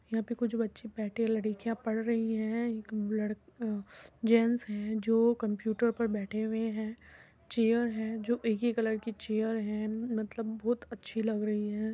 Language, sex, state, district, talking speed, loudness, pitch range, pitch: Hindi, female, Uttar Pradesh, Muzaffarnagar, 180 wpm, -32 LUFS, 215-230 Hz, 225 Hz